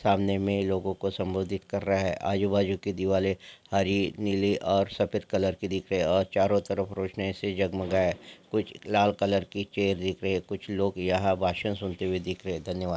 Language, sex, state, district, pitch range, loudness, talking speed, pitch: Marwari, male, Rajasthan, Nagaur, 95-100 Hz, -28 LUFS, 215 wpm, 95 Hz